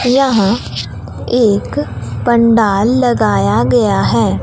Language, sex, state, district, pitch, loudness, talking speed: Hindi, female, Bihar, Katihar, 120 Hz, -13 LUFS, 80 wpm